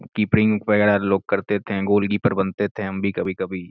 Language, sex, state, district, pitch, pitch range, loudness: Hindi, male, Uttar Pradesh, Gorakhpur, 100 Hz, 95-105 Hz, -21 LUFS